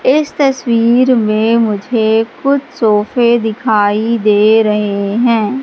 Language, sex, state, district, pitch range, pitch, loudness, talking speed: Hindi, female, Madhya Pradesh, Katni, 215-245 Hz, 225 Hz, -12 LUFS, 105 wpm